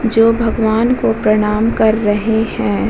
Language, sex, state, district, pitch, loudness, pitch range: Hindi, female, Bihar, Vaishali, 220 Hz, -14 LUFS, 215-230 Hz